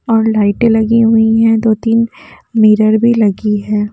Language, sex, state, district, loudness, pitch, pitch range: Hindi, female, Haryana, Jhajjar, -11 LUFS, 220 Hz, 215-225 Hz